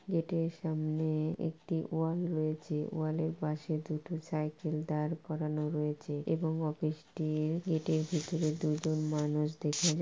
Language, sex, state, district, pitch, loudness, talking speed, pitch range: Bengali, female, West Bengal, Purulia, 155 Hz, -35 LUFS, 145 wpm, 155-160 Hz